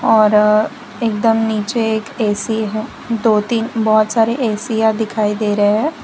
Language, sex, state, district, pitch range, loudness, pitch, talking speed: Hindi, female, Gujarat, Valsad, 215-230 Hz, -16 LUFS, 220 Hz, 150 wpm